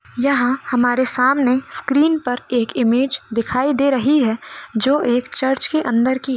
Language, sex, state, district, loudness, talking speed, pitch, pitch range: Hindi, female, Rajasthan, Nagaur, -18 LUFS, 170 wpm, 260 Hz, 245-275 Hz